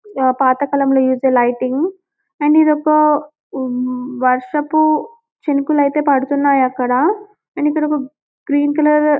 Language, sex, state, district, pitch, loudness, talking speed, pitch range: Telugu, female, Telangana, Karimnagar, 290 Hz, -16 LUFS, 90 wpm, 260-305 Hz